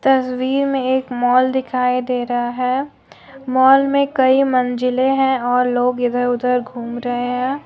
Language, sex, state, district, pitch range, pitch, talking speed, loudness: Hindi, female, Jharkhand, Deoghar, 245-265 Hz, 255 Hz, 165 wpm, -17 LUFS